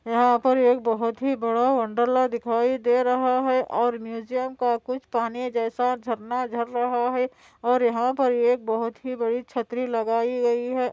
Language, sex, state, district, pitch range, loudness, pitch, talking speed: Hindi, female, Andhra Pradesh, Anantapur, 235-250 Hz, -24 LUFS, 245 Hz, 175 wpm